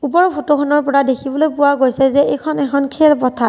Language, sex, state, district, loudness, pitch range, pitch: Assamese, female, Assam, Kamrup Metropolitan, -14 LUFS, 270-295 Hz, 285 Hz